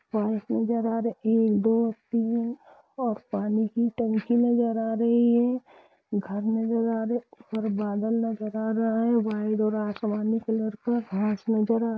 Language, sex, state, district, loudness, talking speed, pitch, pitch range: Hindi, female, Jharkhand, Jamtara, -26 LUFS, 155 wpm, 225 Hz, 215-235 Hz